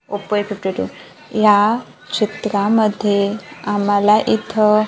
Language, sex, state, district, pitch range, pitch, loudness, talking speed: Marathi, female, Maharashtra, Gondia, 205-215 Hz, 210 Hz, -17 LUFS, 100 wpm